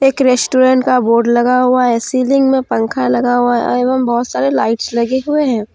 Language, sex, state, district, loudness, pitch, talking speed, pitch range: Hindi, female, Jharkhand, Deoghar, -13 LUFS, 250 Hz, 210 wpm, 240-260 Hz